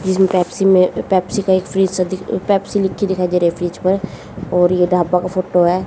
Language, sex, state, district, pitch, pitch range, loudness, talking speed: Hindi, female, Haryana, Jhajjar, 185 Hz, 180-190 Hz, -16 LUFS, 205 wpm